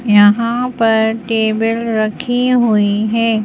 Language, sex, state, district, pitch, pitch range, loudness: Hindi, female, Madhya Pradesh, Bhopal, 225 Hz, 215-230 Hz, -14 LUFS